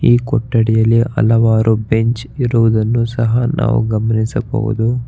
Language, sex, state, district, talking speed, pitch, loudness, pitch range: Kannada, male, Karnataka, Bangalore, 95 wpm, 115 Hz, -15 LUFS, 110-120 Hz